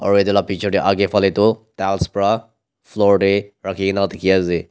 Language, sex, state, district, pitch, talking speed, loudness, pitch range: Nagamese, male, Nagaland, Dimapur, 100 Hz, 190 wpm, -18 LUFS, 95-100 Hz